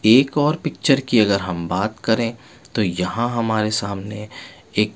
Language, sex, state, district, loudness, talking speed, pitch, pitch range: Hindi, male, Bihar, Patna, -20 LUFS, 170 wpm, 110 Hz, 100-120 Hz